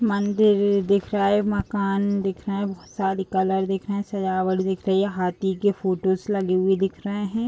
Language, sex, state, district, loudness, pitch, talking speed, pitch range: Hindi, female, Bihar, Vaishali, -23 LUFS, 195 Hz, 210 wpm, 190-205 Hz